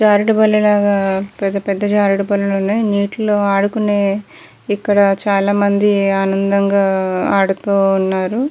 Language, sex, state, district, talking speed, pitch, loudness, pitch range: Telugu, female, Andhra Pradesh, Guntur, 105 wpm, 200 Hz, -15 LUFS, 195-205 Hz